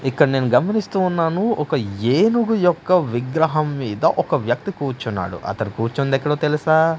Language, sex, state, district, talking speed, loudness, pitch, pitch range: Telugu, male, Andhra Pradesh, Manyam, 135 wpm, -19 LUFS, 150 Hz, 125-175 Hz